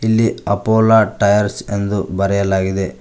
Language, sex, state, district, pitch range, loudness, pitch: Kannada, male, Karnataka, Koppal, 95-110 Hz, -16 LUFS, 100 Hz